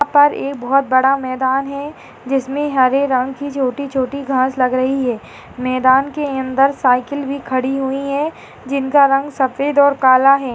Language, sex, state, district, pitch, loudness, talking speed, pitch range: Hindi, female, Bihar, Saharsa, 270 Hz, -16 LUFS, 170 wpm, 260-280 Hz